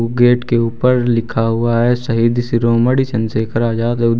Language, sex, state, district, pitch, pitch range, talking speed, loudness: Hindi, male, Uttar Pradesh, Lucknow, 115 Hz, 115-120 Hz, 155 wpm, -15 LUFS